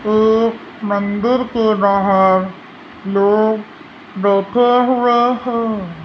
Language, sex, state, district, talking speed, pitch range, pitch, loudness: Hindi, female, Rajasthan, Jaipur, 80 wpm, 200-245 Hz, 220 Hz, -15 LUFS